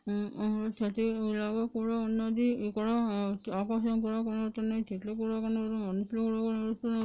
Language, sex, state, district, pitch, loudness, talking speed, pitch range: Telugu, female, Andhra Pradesh, Anantapur, 220 Hz, -32 LUFS, 130 wpm, 215-225 Hz